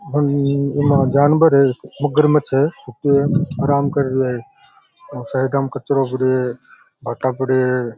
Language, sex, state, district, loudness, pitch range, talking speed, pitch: Rajasthani, male, Rajasthan, Churu, -17 LUFS, 130-145 Hz, 135 wpm, 140 Hz